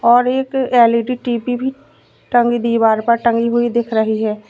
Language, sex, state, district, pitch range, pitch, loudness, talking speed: Hindi, female, Uttar Pradesh, Lalitpur, 230-245 Hz, 235 Hz, -16 LUFS, 175 wpm